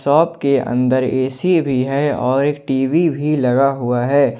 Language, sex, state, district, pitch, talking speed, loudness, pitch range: Hindi, male, Jharkhand, Ranchi, 135 Hz, 175 wpm, -16 LUFS, 130-145 Hz